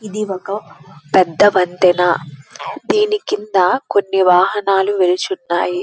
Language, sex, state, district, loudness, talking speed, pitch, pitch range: Telugu, female, Andhra Pradesh, Krishna, -15 LUFS, 95 wpm, 195 Hz, 180-210 Hz